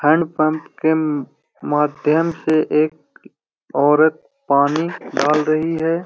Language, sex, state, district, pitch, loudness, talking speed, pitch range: Hindi, male, Bihar, Gaya, 155 Hz, -18 LUFS, 120 wpm, 150-160 Hz